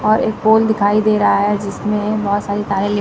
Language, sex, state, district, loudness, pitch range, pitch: Hindi, female, Chandigarh, Chandigarh, -16 LUFS, 205-215 Hz, 210 Hz